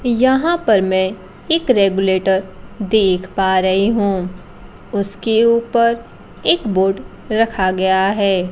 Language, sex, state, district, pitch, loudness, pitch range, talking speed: Hindi, female, Bihar, Kaimur, 200 Hz, -16 LUFS, 190-230 Hz, 115 wpm